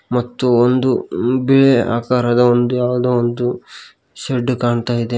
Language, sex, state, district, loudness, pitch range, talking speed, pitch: Kannada, male, Karnataka, Koppal, -16 LUFS, 120-125 Hz, 115 wpm, 125 Hz